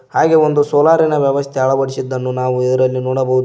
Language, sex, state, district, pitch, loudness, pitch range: Kannada, male, Karnataka, Koppal, 130 Hz, -14 LUFS, 130-145 Hz